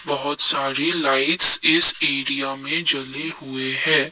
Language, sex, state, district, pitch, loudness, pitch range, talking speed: Hindi, male, Assam, Kamrup Metropolitan, 140 Hz, -15 LUFS, 135-160 Hz, 130 wpm